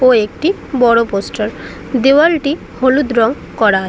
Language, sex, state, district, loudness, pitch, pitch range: Bengali, female, West Bengal, Dakshin Dinajpur, -14 LUFS, 255 Hz, 225-285 Hz